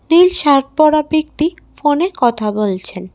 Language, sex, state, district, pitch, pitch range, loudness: Bengali, female, Tripura, West Tripura, 300 Hz, 215-320 Hz, -15 LUFS